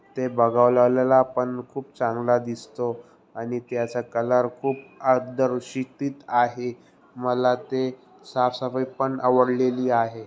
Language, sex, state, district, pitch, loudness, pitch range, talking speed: Marathi, male, Maharashtra, Aurangabad, 125 Hz, -24 LUFS, 120-130 Hz, 105 wpm